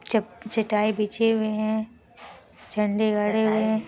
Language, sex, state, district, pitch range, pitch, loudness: Hindi, female, Bihar, Kishanganj, 210-220 Hz, 220 Hz, -24 LUFS